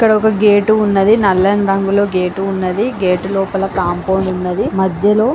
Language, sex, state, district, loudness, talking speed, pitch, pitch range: Telugu, female, Andhra Pradesh, Guntur, -14 LUFS, 135 wpm, 195 Hz, 190-210 Hz